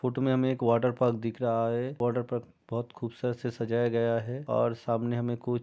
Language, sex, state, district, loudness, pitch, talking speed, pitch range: Hindi, male, Uttar Pradesh, Jyotiba Phule Nagar, -30 LUFS, 120 Hz, 235 wpm, 115-125 Hz